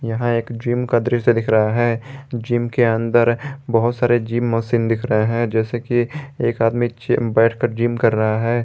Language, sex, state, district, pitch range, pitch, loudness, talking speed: Hindi, male, Jharkhand, Garhwa, 115-120 Hz, 120 Hz, -19 LUFS, 195 wpm